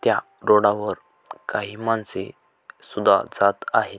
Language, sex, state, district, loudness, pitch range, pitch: Marathi, male, Maharashtra, Sindhudurg, -22 LUFS, 100-110 Hz, 105 Hz